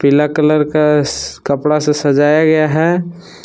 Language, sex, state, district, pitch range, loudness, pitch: Hindi, male, Jharkhand, Palamu, 150-155 Hz, -13 LUFS, 150 Hz